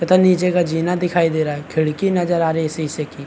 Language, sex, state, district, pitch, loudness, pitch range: Hindi, male, Chhattisgarh, Bastar, 165 Hz, -18 LUFS, 155-180 Hz